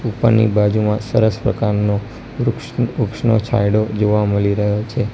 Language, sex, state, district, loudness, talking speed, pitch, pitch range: Gujarati, male, Gujarat, Gandhinagar, -17 LUFS, 130 wpm, 110 Hz, 105-115 Hz